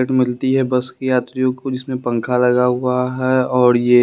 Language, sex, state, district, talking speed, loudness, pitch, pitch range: Hindi, male, Bihar, West Champaran, 210 wpm, -17 LUFS, 125 Hz, 125-130 Hz